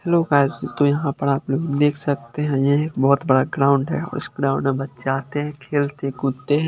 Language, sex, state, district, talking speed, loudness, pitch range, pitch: Hindi, male, Chandigarh, Chandigarh, 235 wpm, -21 LUFS, 135-145 Hz, 140 Hz